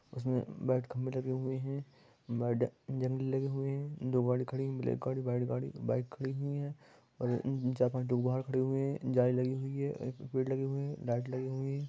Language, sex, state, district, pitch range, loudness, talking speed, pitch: Magahi, male, Bihar, Gaya, 125-135 Hz, -35 LUFS, 230 wpm, 130 Hz